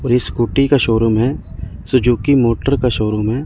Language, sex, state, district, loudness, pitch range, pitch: Hindi, male, Chandigarh, Chandigarh, -15 LUFS, 110-135 Hz, 120 Hz